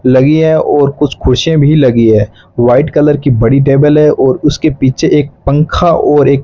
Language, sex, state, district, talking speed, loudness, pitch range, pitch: Hindi, male, Rajasthan, Bikaner, 195 wpm, -9 LUFS, 130-150 Hz, 140 Hz